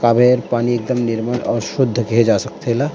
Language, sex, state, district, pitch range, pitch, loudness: Chhattisgarhi, male, Chhattisgarh, Rajnandgaon, 115-125 Hz, 120 Hz, -17 LUFS